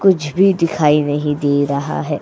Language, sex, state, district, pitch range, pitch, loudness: Hindi, female, Goa, North and South Goa, 145-165 Hz, 150 Hz, -16 LUFS